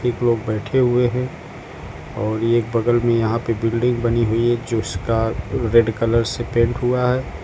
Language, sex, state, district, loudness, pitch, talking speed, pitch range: Hindi, female, Uttar Pradesh, Lucknow, -19 LUFS, 115 Hz, 175 wpm, 115-120 Hz